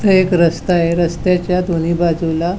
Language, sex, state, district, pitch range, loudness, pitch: Marathi, female, Goa, North and South Goa, 170-180 Hz, -15 LUFS, 175 Hz